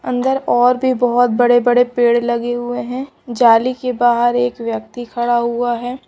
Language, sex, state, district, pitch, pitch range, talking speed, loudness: Hindi, female, Punjab, Pathankot, 245 Hz, 240-250 Hz, 170 wpm, -16 LUFS